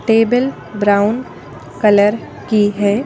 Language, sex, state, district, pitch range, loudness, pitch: Hindi, female, Madhya Pradesh, Bhopal, 205-230 Hz, -15 LUFS, 210 Hz